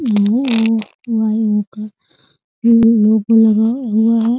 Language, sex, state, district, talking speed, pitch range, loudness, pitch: Hindi, female, Bihar, Muzaffarpur, 40 wpm, 215-230 Hz, -14 LUFS, 225 Hz